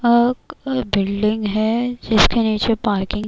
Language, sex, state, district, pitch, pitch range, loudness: Urdu, female, Bihar, Kishanganj, 220 Hz, 210-240 Hz, -18 LUFS